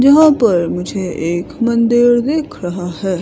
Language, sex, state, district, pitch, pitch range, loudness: Hindi, female, Himachal Pradesh, Shimla, 230 Hz, 175-240 Hz, -14 LUFS